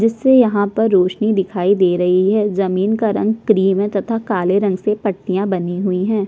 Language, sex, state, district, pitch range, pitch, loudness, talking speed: Hindi, female, Chhattisgarh, Sukma, 190-215 Hz, 200 Hz, -16 LUFS, 200 wpm